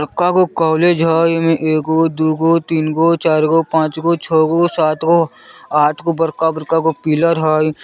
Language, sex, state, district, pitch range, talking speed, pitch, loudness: Bajjika, male, Bihar, Vaishali, 155-165 Hz, 190 wpm, 160 Hz, -15 LUFS